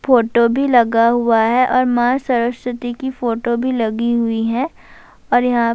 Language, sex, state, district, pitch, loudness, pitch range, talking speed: Urdu, female, Bihar, Saharsa, 240 Hz, -16 LUFS, 230-250 Hz, 155 wpm